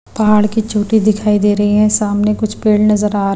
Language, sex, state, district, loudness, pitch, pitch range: Hindi, female, Himachal Pradesh, Shimla, -13 LUFS, 210 Hz, 205-215 Hz